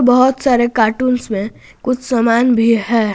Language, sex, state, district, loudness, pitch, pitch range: Hindi, female, Jharkhand, Garhwa, -14 LUFS, 240 Hz, 225-250 Hz